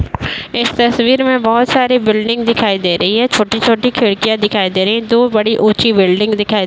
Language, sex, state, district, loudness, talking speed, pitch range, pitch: Hindi, female, Uttar Pradesh, Varanasi, -12 LUFS, 200 wpm, 210-240 Hz, 220 Hz